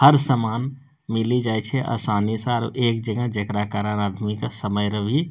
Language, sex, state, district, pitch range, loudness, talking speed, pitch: Angika, male, Bihar, Bhagalpur, 105-125 Hz, -21 LUFS, 190 wpm, 115 Hz